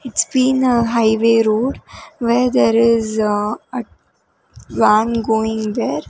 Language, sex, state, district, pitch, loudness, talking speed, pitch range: English, female, Karnataka, Bangalore, 230 Hz, -16 LUFS, 120 wpm, 220-250 Hz